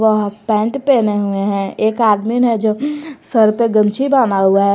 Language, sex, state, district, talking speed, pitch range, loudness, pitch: Hindi, female, Jharkhand, Garhwa, 190 wpm, 205-240 Hz, -15 LUFS, 220 Hz